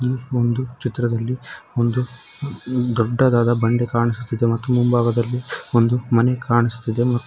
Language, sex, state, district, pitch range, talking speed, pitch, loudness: Kannada, male, Karnataka, Koppal, 120-125 Hz, 100 wpm, 120 Hz, -20 LUFS